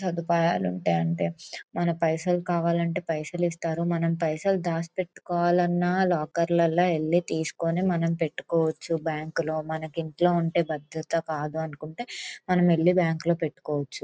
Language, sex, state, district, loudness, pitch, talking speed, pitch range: Telugu, female, Andhra Pradesh, Anantapur, -26 LUFS, 165 Hz, 110 wpm, 160-175 Hz